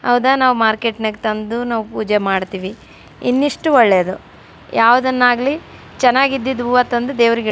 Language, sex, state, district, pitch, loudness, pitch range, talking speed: Kannada, female, Karnataka, Raichur, 240 Hz, -16 LUFS, 215-255 Hz, 135 wpm